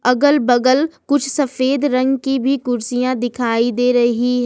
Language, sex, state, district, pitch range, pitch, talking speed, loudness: Hindi, female, Jharkhand, Ranchi, 245-275 Hz, 255 Hz, 160 wpm, -16 LUFS